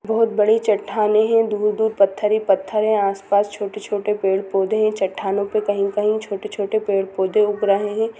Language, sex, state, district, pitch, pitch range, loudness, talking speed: Hindi, female, Chhattisgarh, Sukma, 210 Hz, 200-215 Hz, -19 LUFS, 225 wpm